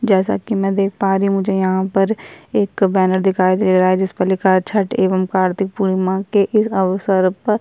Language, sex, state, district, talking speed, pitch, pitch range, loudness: Hindi, female, Uttarakhand, Tehri Garhwal, 230 wpm, 195 Hz, 185-200 Hz, -17 LUFS